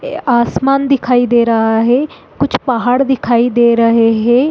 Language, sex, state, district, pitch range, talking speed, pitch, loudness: Hindi, female, Uttarakhand, Uttarkashi, 235-260 Hz, 160 wpm, 245 Hz, -12 LUFS